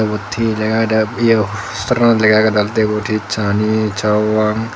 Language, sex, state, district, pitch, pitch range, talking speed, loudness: Chakma, male, Tripura, Dhalai, 110 Hz, 105-110 Hz, 190 wpm, -15 LUFS